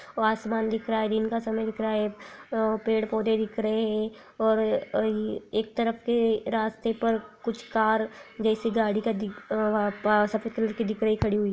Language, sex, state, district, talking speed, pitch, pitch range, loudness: Hindi, female, Chhattisgarh, Bilaspur, 175 wpm, 220 Hz, 215-225 Hz, -27 LUFS